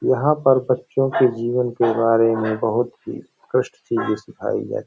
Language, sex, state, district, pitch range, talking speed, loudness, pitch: Hindi, male, Uttar Pradesh, Hamirpur, 115-135 Hz, 185 wpm, -20 LUFS, 125 Hz